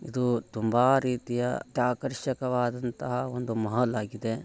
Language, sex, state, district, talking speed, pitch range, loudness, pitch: Kannada, male, Karnataka, Bijapur, 95 wpm, 120-125 Hz, -28 LUFS, 125 Hz